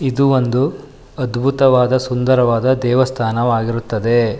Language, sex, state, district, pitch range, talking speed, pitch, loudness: Kannada, male, Karnataka, Shimoga, 120-130 Hz, 70 wpm, 125 Hz, -16 LUFS